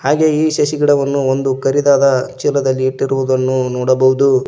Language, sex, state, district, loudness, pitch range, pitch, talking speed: Kannada, male, Karnataka, Koppal, -14 LUFS, 130-145 Hz, 135 Hz, 120 wpm